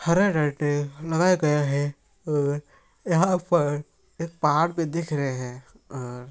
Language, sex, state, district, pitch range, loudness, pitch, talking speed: Hindi, male, Bihar, Araria, 145-170 Hz, -25 LUFS, 150 Hz, 145 wpm